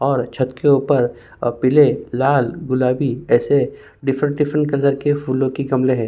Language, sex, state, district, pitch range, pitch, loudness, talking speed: Hindi, male, Uttar Pradesh, Jyotiba Phule Nagar, 130-145 Hz, 135 Hz, -18 LUFS, 170 wpm